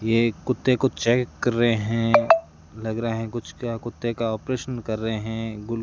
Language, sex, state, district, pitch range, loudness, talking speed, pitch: Hindi, male, Rajasthan, Jaisalmer, 110-120 Hz, -24 LUFS, 215 wpm, 115 Hz